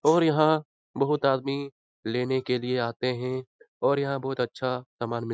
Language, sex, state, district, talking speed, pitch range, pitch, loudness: Hindi, male, Bihar, Lakhisarai, 180 wpm, 125-140 Hz, 130 Hz, -27 LUFS